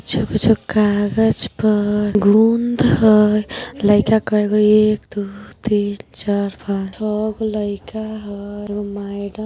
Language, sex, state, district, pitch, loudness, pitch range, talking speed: Hindi, female, Bihar, Vaishali, 210 Hz, -17 LUFS, 205-215 Hz, 135 wpm